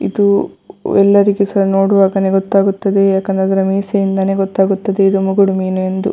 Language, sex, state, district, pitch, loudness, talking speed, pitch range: Kannada, female, Karnataka, Dakshina Kannada, 195 Hz, -13 LUFS, 125 wpm, 195-200 Hz